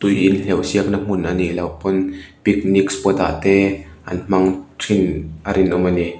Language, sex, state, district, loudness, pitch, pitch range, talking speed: Mizo, male, Mizoram, Aizawl, -18 LUFS, 95 Hz, 90-95 Hz, 175 wpm